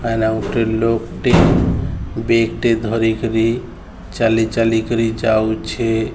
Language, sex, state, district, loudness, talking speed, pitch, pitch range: Odia, male, Odisha, Sambalpur, -17 LUFS, 105 wpm, 110 Hz, 110-115 Hz